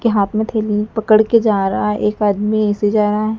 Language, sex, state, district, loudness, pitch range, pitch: Hindi, female, Madhya Pradesh, Dhar, -16 LUFS, 210-220 Hz, 210 Hz